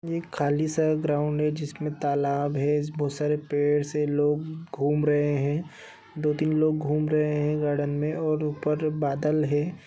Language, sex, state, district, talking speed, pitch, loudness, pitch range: Hindi, male, Bihar, Bhagalpur, 160 wpm, 150 Hz, -26 LUFS, 145-155 Hz